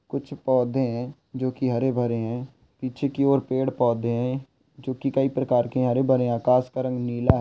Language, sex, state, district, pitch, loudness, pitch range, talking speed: Hindi, male, Goa, North and South Goa, 130 Hz, -25 LUFS, 120-135 Hz, 200 wpm